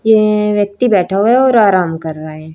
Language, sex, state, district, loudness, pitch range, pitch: Hindi, female, Chhattisgarh, Raipur, -12 LUFS, 165-220 Hz, 205 Hz